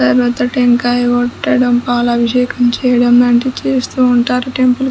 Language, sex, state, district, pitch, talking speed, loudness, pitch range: Telugu, female, Andhra Pradesh, Chittoor, 245 Hz, 135 wpm, -12 LUFS, 245-250 Hz